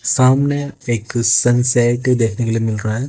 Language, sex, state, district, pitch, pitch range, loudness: Hindi, male, Haryana, Jhajjar, 120 Hz, 115-130 Hz, -16 LUFS